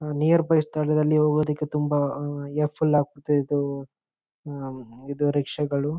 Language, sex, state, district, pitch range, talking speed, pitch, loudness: Kannada, male, Karnataka, Bellary, 140-150 Hz, 90 wpm, 145 Hz, -24 LUFS